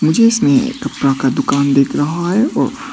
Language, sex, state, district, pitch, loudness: Hindi, male, Arunachal Pradesh, Papum Pare, 180 Hz, -14 LUFS